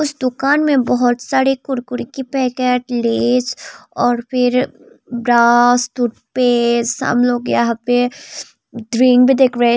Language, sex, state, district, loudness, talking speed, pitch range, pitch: Hindi, female, Tripura, Unakoti, -15 LUFS, 100 wpm, 240-260 Hz, 245 Hz